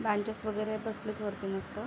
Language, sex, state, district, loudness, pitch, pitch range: Marathi, female, Maharashtra, Aurangabad, -35 LUFS, 215 Hz, 205-215 Hz